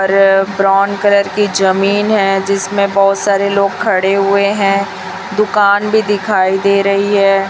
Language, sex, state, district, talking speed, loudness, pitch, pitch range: Hindi, female, Chhattisgarh, Raipur, 150 wpm, -12 LUFS, 200 Hz, 195-200 Hz